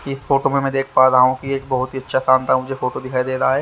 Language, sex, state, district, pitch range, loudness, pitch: Hindi, male, Haryana, Charkhi Dadri, 130-135 Hz, -18 LUFS, 130 Hz